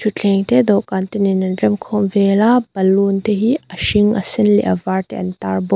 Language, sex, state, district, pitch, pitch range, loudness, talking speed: Mizo, female, Mizoram, Aizawl, 200 Hz, 190-210 Hz, -16 LUFS, 250 wpm